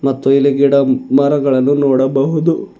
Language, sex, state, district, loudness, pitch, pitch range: Kannada, male, Karnataka, Bidar, -13 LUFS, 140 Hz, 135-140 Hz